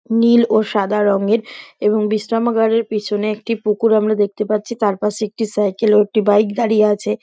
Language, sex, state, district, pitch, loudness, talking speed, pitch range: Bengali, female, West Bengal, Dakshin Dinajpur, 215 Hz, -17 LUFS, 175 wpm, 210-225 Hz